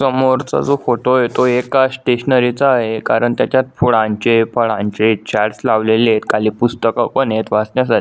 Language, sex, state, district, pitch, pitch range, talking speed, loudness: Marathi, male, Maharashtra, Solapur, 120 Hz, 110-130 Hz, 155 wpm, -15 LUFS